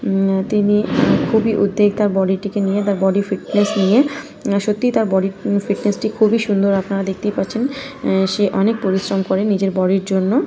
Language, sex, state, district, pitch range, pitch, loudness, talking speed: Bengali, female, West Bengal, North 24 Parganas, 195-215 Hz, 200 Hz, -17 LUFS, 165 wpm